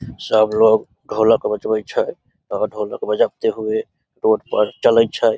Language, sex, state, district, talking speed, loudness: Maithili, male, Bihar, Samastipur, 145 wpm, -18 LUFS